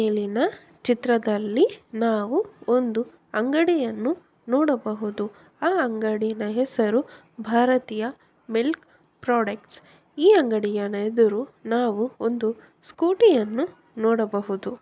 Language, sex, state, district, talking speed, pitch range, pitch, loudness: Kannada, female, Karnataka, Bellary, 80 wpm, 215-275 Hz, 230 Hz, -24 LUFS